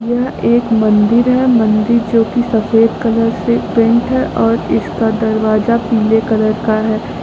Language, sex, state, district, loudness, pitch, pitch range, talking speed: Hindi, female, Uttar Pradesh, Lucknow, -13 LUFS, 225 Hz, 220-235 Hz, 160 wpm